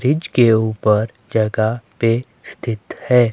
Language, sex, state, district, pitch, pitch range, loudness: Hindi, male, Himachal Pradesh, Shimla, 115 Hz, 110-120 Hz, -18 LUFS